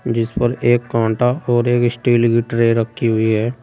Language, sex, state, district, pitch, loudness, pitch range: Hindi, male, Uttar Pradesh, Saharanpur, 120 Hz, -17 LUFS, 115-120 Hz